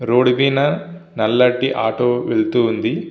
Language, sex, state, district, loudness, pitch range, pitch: Telugu, male, Andhra Pradesh, Visakhapatnam, -17 LUFS, 125-160 Hz, 130 Hz